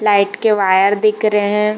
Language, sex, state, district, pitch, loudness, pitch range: Hindi, female, Bihar, Darbhanga, 210 Hz, -14 LUFS, 200-215 Hz